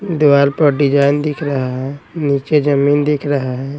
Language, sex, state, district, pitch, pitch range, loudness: Hindi, male, Bihar, Patna, 145 Hz, 140-150 Hz, -15 LUFS